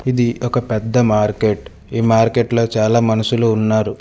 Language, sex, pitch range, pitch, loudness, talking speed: Telugu, male, 110-120 Hz, 115 Hz, -16 LUFS, 135 wpm